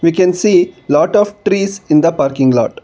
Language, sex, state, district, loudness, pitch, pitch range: English, male, Karnataka, Bangalore, -13 LUFS, 180 Hz, 165-200 Hz